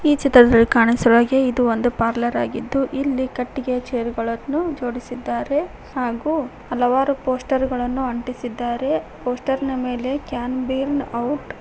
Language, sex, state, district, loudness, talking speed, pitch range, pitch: Kannada, female, Karnataka, Koppal, -20 LUFS, 130 wpm, 240-270 Hz, 255 Hz